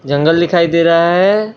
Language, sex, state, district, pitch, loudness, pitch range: Hindi, male, Assam, Kamrup Metropolitan, 170 Hz, -12 LUFS, 165-180 Hz